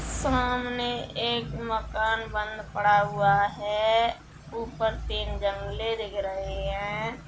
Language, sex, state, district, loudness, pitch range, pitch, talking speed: Hindi, female, Bihar, Saran, -27 LUFS, 205-230 Hz, 215 Hz, 105 wpm